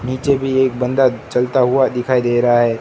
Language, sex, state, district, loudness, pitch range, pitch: Hindi, male, Gujarat, Gandhinagar, -16 LUFS, 125-130 Hz, 125 Hz